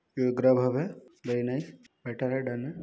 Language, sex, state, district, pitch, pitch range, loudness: Hindi, male, Bihar, Muzaffarpur, 130 Hz, 125-130 Hz, -29 LUFS